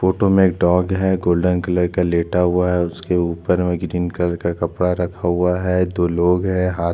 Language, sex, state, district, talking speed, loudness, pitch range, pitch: Hindi, male, Chhattisgarh, Jashpur, 215 wpm, -18 LUFS, 85-90 Hz, 90 Hz